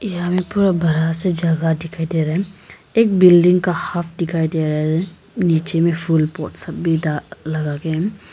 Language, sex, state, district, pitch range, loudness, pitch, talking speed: Hindi, female, Arunachal Pradesh, Papum Pare, 160-180 Hz, -18 LUFS, 170 Hz, 175 wpm